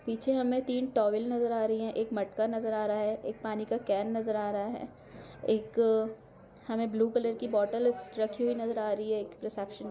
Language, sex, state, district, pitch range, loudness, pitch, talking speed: Hindi, female, Chhattisgarh, Raigarh, 215-235 Hz, -31 LUFS, 220 Hz, 195 wpm